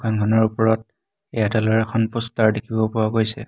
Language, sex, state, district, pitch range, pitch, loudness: Assamese, male, Assam, Hailakandi, 110-115 Hz, 110 Hz, -20 LUFS